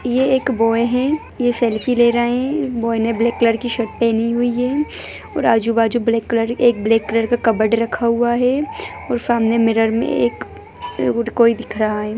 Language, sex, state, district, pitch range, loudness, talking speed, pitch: Hindi, female, Bihar, Muzaffarpur, 230-245 Hz, -17 LUFS, 195 wpm, 235 Hz